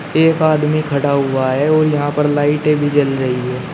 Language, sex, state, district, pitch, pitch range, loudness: Hindi, male, Uttar Pradesh, Shamli, 145 Hz, 135-150 Hz, -15 LUFS